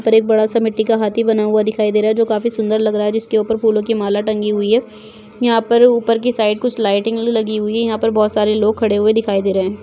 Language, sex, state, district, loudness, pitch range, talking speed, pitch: Hindi, female, Goa, North and South Goa, -15 LUFS, 215-225 Hz, 300 wpm, 220 Hz